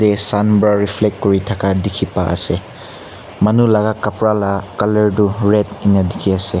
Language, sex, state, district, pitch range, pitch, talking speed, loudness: Nagamese, male, Nagaland, Kohima, 100-105 Hz, 105 Hz, 165 wpm, -15 LUFS